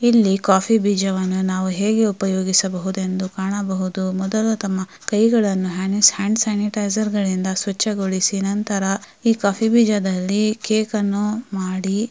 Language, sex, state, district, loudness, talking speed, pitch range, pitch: Kannada, female, Karnataka, Mysore, -19 LUFS, 100 wpm, 190-215 Hz, 200 Hz